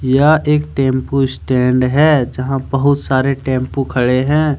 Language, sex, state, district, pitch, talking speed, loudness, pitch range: Hindi, male, Jharkhand, Deoghar, 135 Hz, 145 wpm, -15 LUFS, 130-145 Hz